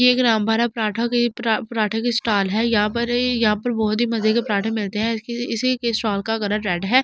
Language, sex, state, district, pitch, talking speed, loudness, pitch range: Hindi, female, Delhi, New Delhi, 225 Hz, 230 wpm, -20 LUFS, 215-235 Hz